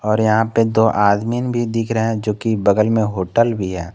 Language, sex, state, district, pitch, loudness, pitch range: Hindi, male, Jharkhand, Garhwa, 110 Hz, -17 LUFS, 105-115 Hz